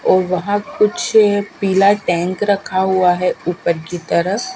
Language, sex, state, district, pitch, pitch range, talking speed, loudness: Hindi, female, Bihar, Katihar, 190 Hz, 180-205 Hz, 145 wpm, -16 LUFS